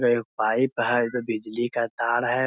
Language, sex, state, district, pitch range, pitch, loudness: Hindi, male, Bihar, Muzaffarpur, 115-120 Hz, 120 Hz, -25 LUFS